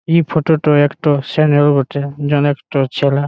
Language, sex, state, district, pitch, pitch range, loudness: Bengali, male, West Bengal, Malda, 145 Hz, 140-150 Hz, -15 LUFS